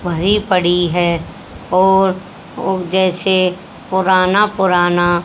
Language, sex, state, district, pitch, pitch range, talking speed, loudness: Hindi, female, Haryana, Jhajjar, 185 Hz, 175-190 Hz, 90 wpm, -15 LUFS